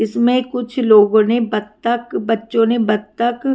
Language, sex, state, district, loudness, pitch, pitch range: Hindi, female, Haryana, Rohtak, -16 LUFS, 230 Hz, 215-240 Hz